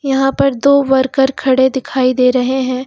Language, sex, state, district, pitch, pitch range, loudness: Hindi, female, Uttar Pradesh, Lucknow, 265 Hz, 260-270 Hz, -13 LUFS